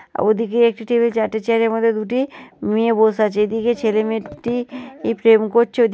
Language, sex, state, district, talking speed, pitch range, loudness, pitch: Bengali, female, West Bengal, Jhargram, 190 wpm, 220-235 Hz, -18 LUFS, 225 Hz